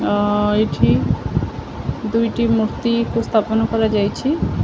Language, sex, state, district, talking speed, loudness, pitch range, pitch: Odia, female, Odisha, Khordha, 80 wpm, -18 LUFS, 210-230 Hz, 220 Hz